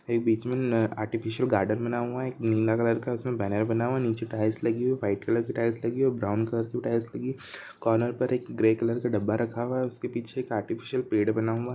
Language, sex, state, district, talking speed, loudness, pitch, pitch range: Hindi, male, Chhattisgarh, Raigarh, 270 wpm, -28 LUFS, 115 Hz, 110-120 Hz